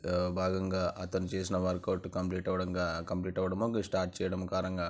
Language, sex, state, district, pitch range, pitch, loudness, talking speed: Telugu, male, Andhra Pradesh, Anantapur, 90-95 Hz, 95 Hz, -34 LUFS, 185 wpm